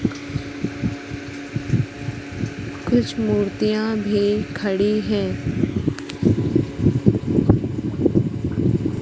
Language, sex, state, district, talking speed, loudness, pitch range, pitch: Hindi, female, Madhya Pradesh, Katni, 35 wpm, -22 LUFS, 140-210 Hz, 195 Hz